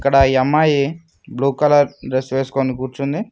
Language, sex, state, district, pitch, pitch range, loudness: Telugu, male, Telangana, Mahabubabad, 140 Hz, 135-145 Hz, -17 LUFS